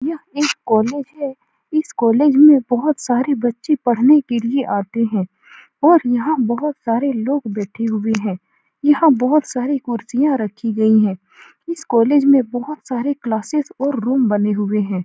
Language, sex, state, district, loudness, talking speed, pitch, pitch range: Hindi, female, Bihar, Saran, -17 LUFS, 165 wpm, 255 Hz, 225-290 Hz